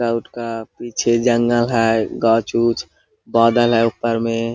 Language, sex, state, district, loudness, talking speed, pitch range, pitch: Hindi, male, Jharkhand, Sahebganj, -18 LUFS, 145 wpm, 115-120 Hz, 115 Hz